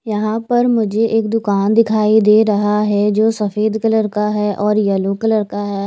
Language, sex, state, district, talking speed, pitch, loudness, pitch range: Hindi, female, Chandigarh, Chandigarh, 195 wpm, 210 Hz, -15 LUFS, 210-220 Hz